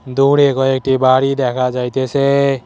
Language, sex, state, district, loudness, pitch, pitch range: Bengali, male, West Bengal, Cooch Behar, -14 LUFS, 135 Hz, 130-140 Hz